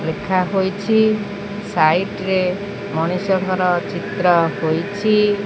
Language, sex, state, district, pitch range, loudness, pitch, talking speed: Odia, female, Odisha, Khordha, 180-205 Hz, -19 LUFS, 190 Hz, 65 wpm